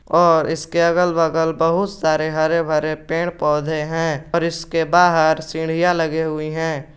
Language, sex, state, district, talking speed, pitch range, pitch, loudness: Hindi, male, Jharkhand, Garhwa, 155 wpm, 155-170 Hz, 160 Hz, -18 LUFS